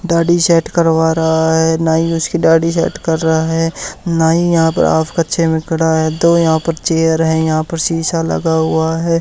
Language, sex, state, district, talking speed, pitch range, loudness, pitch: Hindi, male, Haryana, Charkhi Dadri, 200 wpm, 160-165 Hz, -14 LUFS, 165 Hz